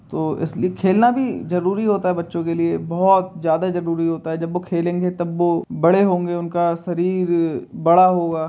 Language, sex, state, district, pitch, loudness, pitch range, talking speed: Hindi, male, Uttar Pradesh, Jalaun, 175 Hz, -19 LUFS, 170-185 Hz, 175 wpm